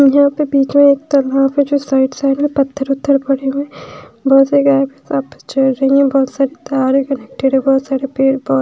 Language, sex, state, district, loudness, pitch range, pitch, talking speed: Hindi, female, Bihar, West Champaran, -14 LUFS, 270-280 Hz, 275 Hz, 220 wpm